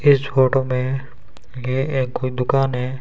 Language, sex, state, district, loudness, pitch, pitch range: Hindi, male, Rajasthan, Bikaner, -20 LUFS, 130 Hz, 125-135 Hz